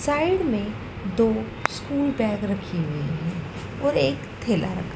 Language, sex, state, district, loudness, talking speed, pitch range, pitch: Hindi, female, Madhya Pradesh, Dhar, -25 LUFS, 145 wpm, 170-245 Hz, 205 Hz